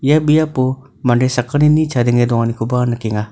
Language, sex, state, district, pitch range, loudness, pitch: Garo, male, Meghalaya, North Garo Hills, 120-145 Hz, -15 LUFS, 125 Hz